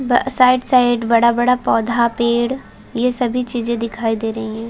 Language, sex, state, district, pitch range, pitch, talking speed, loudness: Hindi, female, Chhattisgarh, Balrampur, 230-250 Hz, 235 Hz, 140 wpm, -17 LUFS